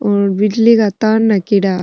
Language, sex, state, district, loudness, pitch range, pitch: Rajasthani, female, Rajasthan, Nagaur, -13 LUFS, 200-220 Hz, 210 Hz